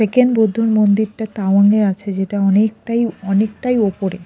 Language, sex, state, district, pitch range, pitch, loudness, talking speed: Bengali, female, Odisha, Khordha, 195-220 Hz, 210 Hz, -16 LUFS, 125 wpm